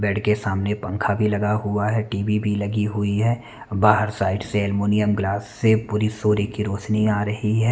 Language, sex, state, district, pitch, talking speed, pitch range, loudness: Hindi, male, Chandigarh, Chandigarh, 105 Hz, 195 wpm, 100-105 Hz, -22 LUFS